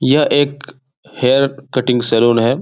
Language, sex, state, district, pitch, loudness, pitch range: Hindi, male, Bihar, Jahanabad, 130 Hz, -14 LUFS, 120-140 Hz